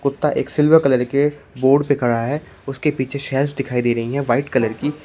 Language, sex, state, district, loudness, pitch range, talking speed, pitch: Hindi, male, Uttar Pradesh, Shamli, -19 LUFS, 130-145 Hz, 215 wpm, 140 Hz